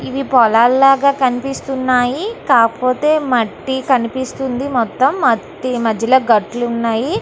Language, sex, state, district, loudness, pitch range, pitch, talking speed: Telugu, female, Andhra Pradesh, Guntur, -15 LUFS, 240-270 Hz, 255 Hz, 85 wpm